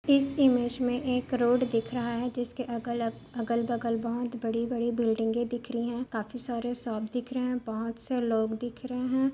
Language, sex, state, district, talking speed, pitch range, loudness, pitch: Hindi, female, Maharashtra, Aurangabad, 185 wpm, 230-250 Hz, -30 LUFS, 240 Hz